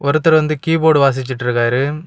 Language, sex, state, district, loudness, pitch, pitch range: Tamil, male, Tamil Nadu, Kanyakumari, -15 LUFS, 145 Hz, 130-155 Hz